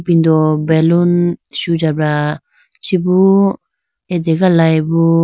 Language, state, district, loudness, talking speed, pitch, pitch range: Idu Mishmi, Arunachal Pradesh, Lower Dibang Valley, -13 LUFS, 70 wpm, 165 Hz, 160-180 Hz